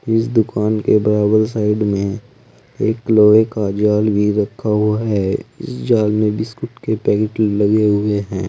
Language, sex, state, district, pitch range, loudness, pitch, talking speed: Hindi, male, Uttar Pradesh, Saharanpur, 105-110 Hz, -16 LUFS, 105 Hz, 160 wpm